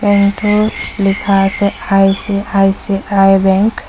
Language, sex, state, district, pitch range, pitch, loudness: Assamese, female, Assam, Sonitpur, 195-205 Hz, 200 Hz, -13 LUFS